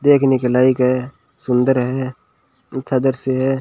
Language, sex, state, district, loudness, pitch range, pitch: Hindi, male, Rajasthan, Bikaner, -17 LUFS, 125-135 Hz, 130 Hz